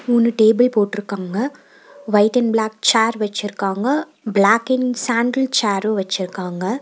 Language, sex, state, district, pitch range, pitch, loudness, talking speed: Tamil, female, Tamil Nadu, Nilgiris, 200-245 Hz, 220 Hz, -18 LUFS, 105 wpm